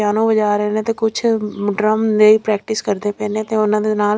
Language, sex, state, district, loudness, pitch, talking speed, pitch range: Punjabi, female, Chandigarh, Chandigarh, -17 LUFS, 215 Hz, 230 wpm, 210-220 Hz